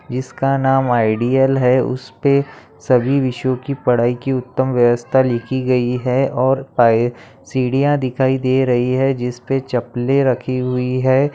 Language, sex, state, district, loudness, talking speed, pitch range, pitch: Hindi, male, Bihar, Darbhanga, -17 LUFS, 135 wpm, 125-135 Hz, 130 Hz